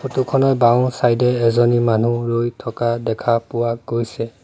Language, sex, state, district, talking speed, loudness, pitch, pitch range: Assamese, male, Assam, Sonitpur, 160 wpm, -18 LUFS, 120 Hz, 115-125 Hz